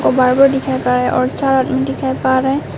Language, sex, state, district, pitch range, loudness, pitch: Hindi, female, Arunachal Pradesh, Papum Pare, 250-265 Hz, -15 LUFS, 260 Hz